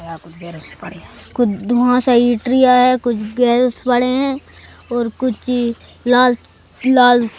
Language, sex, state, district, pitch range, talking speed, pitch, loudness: Hindi, male, Madhya Pradesh, Bhopal, 235-250 Hz, 105 wpm, 245 Hz, -15 LUFS